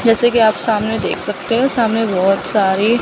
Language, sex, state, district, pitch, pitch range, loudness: Hindi, female, Chandigarh, Chandigarh, 220 Hz, 200-230 Hz, -15 LUFS